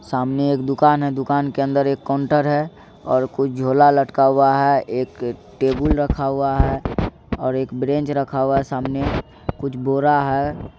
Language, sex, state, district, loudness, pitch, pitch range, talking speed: Maithili, male, Bihar, Supaul, -19 LUFS, 135 Hz, 135-140 Hz, 160 wpm